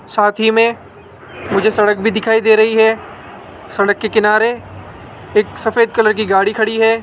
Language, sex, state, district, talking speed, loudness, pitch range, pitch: Hindi, male, Rajasthan, Jaipur, 170 wpm, -14 LUFS, 210-225 Hz, 220 Hz